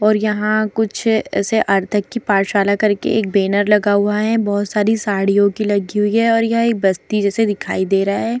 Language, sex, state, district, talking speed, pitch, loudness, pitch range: Hindi, female, Bihar, Vaishali, 200 wpm, 210 Hz, -16 LUFS, 200-220 Hz